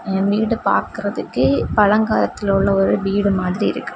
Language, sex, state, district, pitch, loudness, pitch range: Tamil, female, Tamil Nadu, Kanyakumari, 200 Hz, -18 LUFS, 195-210 Hz